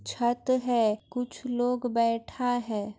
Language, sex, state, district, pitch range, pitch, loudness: Maithili, female, Bihar, Muzaffarpur, 230-245 Hz, 245 Hz, -28 LUFS